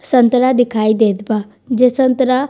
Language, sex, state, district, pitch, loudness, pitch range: Bhojpuri, female, Bihar, East Champaran, 245 Hz, -14 LUFS, 215-255 Hz